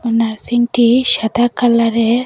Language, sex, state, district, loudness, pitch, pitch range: Bengali, female, Assam, Hailakandi, -13 LUFS, 235 Hz, 230-245 Hz